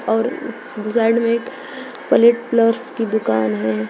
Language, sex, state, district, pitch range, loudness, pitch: Hindi, female, Uttar Pradesh, Shamli, 215-235 Hz, -18 LUFS, 230 Hz